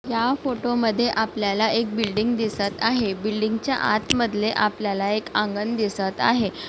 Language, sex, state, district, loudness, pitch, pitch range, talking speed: Marathi, female, Maharashtra, Nagpur, -23 LUFS, 220 Hz, 210-235 Hz, 145 wpm